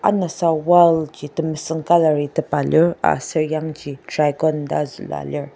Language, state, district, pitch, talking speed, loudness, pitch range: Ao, Nagaland, Dimapur, 155 Hz, 140 wpm, -19 LUFS, 150-165 Hz